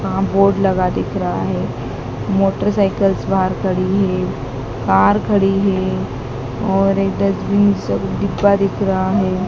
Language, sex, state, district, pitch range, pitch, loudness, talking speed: Hindi, female, Madhya Pradesh, Dhar, 185-195 Hz, 195 Hz, -17 LUFS, 135 wpm